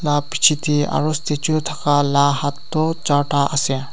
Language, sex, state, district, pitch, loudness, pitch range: Nagamese, male, Nagaland, Kohima, 145 Hz, -18 LUFS, 145-155 Hz